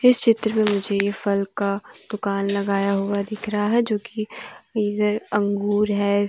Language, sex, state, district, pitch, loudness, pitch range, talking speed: Hindi, female, Jharkhand, Deoghar, 205 Hz, -22 LUFS, 200-215 Hz, 170 wpm